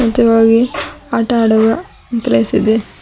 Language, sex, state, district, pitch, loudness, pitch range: Kannada, female, Karnataka, Bidar, 225 Hz, -13 LUFS, 220-235 Hz